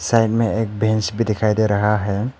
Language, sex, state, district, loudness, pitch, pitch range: Hindi, male, Arunachal Pradesh, Papum Pare, -19 LUFS, 110 Hz, 105-115 Hz